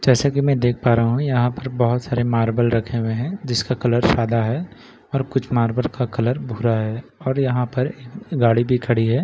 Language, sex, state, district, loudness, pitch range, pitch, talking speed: Hindi, male, Bihar, Katihar, -20 LUFS, 115-130 Hz, 120 Hz, 220 wpm